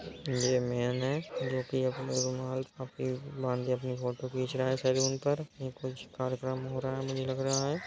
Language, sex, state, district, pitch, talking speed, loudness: Hindi, male, Bihar, East Champaran, 130 Hz, 190 wpm, -33 LUFS